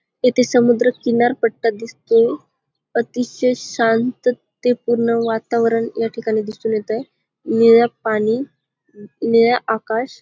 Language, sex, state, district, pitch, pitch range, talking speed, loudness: Marathi, female, Maharashtra, Dhule, 230 Hz, 225-245 Hz, 105 wpm, -18 LUFS